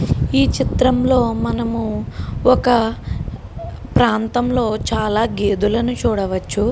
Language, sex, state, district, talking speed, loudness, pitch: Telugu, female, Telangana, Karimnagar, 90 wpm, -18 LUFS, 215 Hz